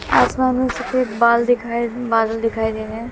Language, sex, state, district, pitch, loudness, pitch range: Hindi, female, Bihar, West Champaran, 235 Hz, -19 LUFS, 225-245 Hz